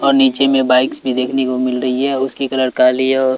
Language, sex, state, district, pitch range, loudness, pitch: Hindi, male, Chhattisgarh, Raipur, 130-135 Hz, -15 LUFS, 130 Hz